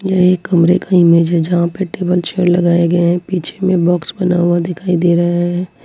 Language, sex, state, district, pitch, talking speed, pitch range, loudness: Hindi, female, Jharkhand, Ranchi, 175 Hz, 225 wpm, 175-180 Hz, -14 LUFS